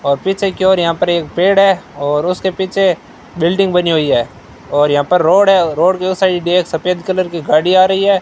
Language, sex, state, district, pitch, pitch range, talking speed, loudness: Hindi, male, Rajasthan, Bikaner, 180 Hz, 160-190 Hz, 240 wpm, -13 LUFS